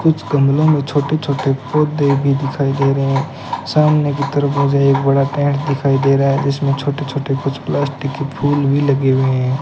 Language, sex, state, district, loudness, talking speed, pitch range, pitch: Hindi, male, Rajasthan, Bikaner, -16 LUFS, 205 wpm, 135-145 Hz, 140 Hz